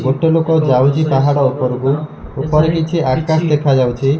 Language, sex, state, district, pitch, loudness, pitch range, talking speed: Odia, male, Odisha, Malkangiri, 145 Hz, -14 LUFS, 135-160 Hz, 130 wpm